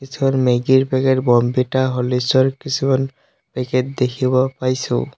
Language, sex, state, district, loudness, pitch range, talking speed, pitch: Assamese, male, Assam, Sonitpur, -18 LUFS, 125-135 Hz, 125 wpm, 130 Hz